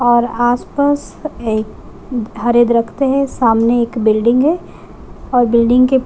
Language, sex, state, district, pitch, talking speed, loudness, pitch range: Hindi, female, Bihar, Gopalganj, 240 Hz, 130 wpm, -14 LUFS, 235-265 Hz